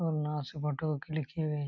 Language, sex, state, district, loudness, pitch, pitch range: Hindi, male, Jharkhand, Jamtara, -34 LUFS, 150 Hz, 150-155 Hz